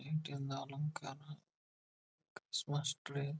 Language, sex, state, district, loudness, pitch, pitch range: Kannada, male, Karnataka, Belgaum, -42 LUFS, 140 Hz, 135-150 Hz